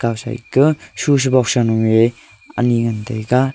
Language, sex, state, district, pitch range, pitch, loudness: Wancho, male, Arunachal Pradesh, Longding, 115-130 Hz, 120 Hz, -16 LUFS